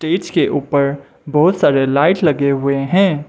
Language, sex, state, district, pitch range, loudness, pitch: Hindi, male, Mizoram, Aizawl, 140-175 Hz, -15 LUFS, 145 Hz